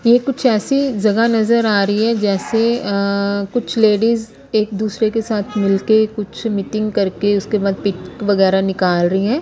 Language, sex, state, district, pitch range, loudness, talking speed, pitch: Hindi, female, Punjab, Kapurthala, 200-225 Hz, -17 LUFS, 180 wpm, 215 Hz